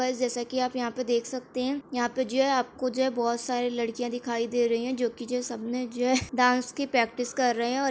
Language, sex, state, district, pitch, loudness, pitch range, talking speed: Hindi, female, Bihar, Saran, 250 Hz, -28 LUFS, 240-255 Hz, 280 wpm